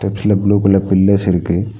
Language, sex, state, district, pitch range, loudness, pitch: Tamil, male, Tamil Nadu, Nilgiris, 95-100 Hz, -14 LUFS, 100 Hz